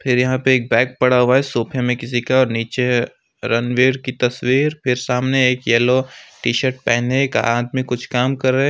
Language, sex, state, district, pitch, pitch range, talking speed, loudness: Hindi, male, West Bengal, Alipurduar, 125 Hz, 120-130 Hz, 200 wpm, -17 LUFS